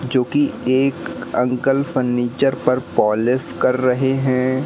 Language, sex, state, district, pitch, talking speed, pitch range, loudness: Hindi, male, Madhya Pradesh, Katni, 130 Hz, 130 wpm, 125-135 Hz, -19 LUFS